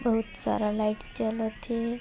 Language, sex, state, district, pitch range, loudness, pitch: Hindi, female, Chhattisgarh, Sarguja, 215-230 Hz, -30 LUFS, 225 Hz